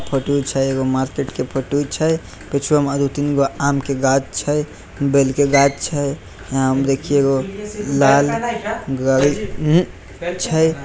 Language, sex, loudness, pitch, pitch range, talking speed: Maithili, male, -18 LUFS, 140 Hz, 135-150 Hz, 140 wpm